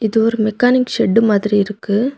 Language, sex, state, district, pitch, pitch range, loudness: Tamil, female, Tamil Nadu, Kanyakumari, 225 Hz, 210-230 Hz, -15 LUFS